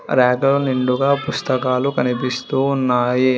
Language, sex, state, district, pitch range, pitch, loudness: Telugu, male, Telangana, Hyderabad, 125-135 Hz, 130 Hz, -18 LUFS